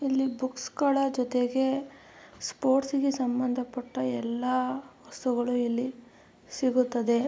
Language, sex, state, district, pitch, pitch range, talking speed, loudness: Kannada, female, Karnataka, Mysore, 255 Hz, 245-265 Hz, 75 wpm, -29 LUFS